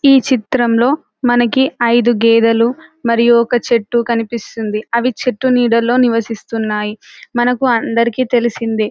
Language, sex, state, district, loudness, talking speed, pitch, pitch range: Telugu, female, Telangana, Karimnagar, -14 LUFS, 115 wpm, 235 Hz, 230-245 Hz